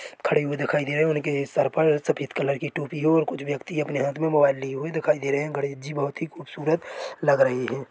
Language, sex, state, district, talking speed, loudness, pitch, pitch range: Hindi, male, Chhattisgarh, Korba, 265 wpm, -25 LUFS, 150 Hz, 140-155 Hz